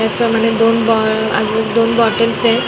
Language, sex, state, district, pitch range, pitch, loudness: Marathi, female, Maharashtra, Mumbai Suburban, 220-230 Hz, 225 Hz, -14 LUFS